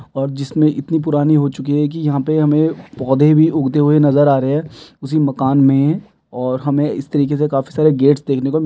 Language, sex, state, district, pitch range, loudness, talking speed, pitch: Maithili, male, Bihar, Samastipur, 135-155 Hz, -15 LUFS, 230 wpm, 145 Hz